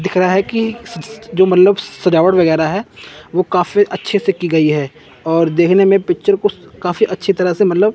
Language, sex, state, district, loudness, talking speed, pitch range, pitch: Hindi, male, Chandigarh, Chandigarh, -14 LUFS, 195 wpm, 175-205 Hz, 185 Hz